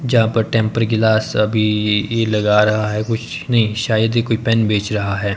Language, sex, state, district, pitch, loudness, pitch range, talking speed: Hindi, male, Himachal Pradesh, Shimla, 110 Hz, -17 LUFS, 105-115 Hz, 190 wpm